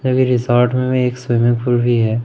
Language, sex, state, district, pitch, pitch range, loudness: Hindi, male, Madhya Pradesh, Umaria, 120 Hz, 120-125 Hz, -16 LUFS